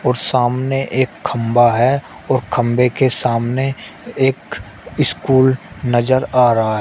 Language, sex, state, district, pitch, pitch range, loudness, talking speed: Hindi, male, Uttar Pradesh, Shamli, 125 Hz, 120-130 Hz, -16 LUFS, 125 wpm